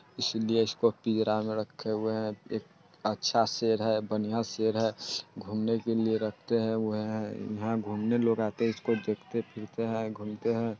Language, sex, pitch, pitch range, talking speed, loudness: Bajjika, male, 110 Hz, 110-115 Hz, 180 wpm, -31 LUFS